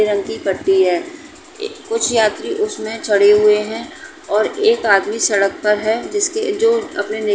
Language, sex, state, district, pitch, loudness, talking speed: Hindi, female, Uttar Pradesh, Etah, 225 Hz, -16 LUFS, 180 wpm